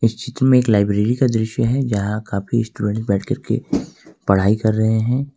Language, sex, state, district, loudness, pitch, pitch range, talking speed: Hindi, male, Jharkhand, Ranchi, -19 LUFS, 110 Hz, 105-125 Hz, 180 wpm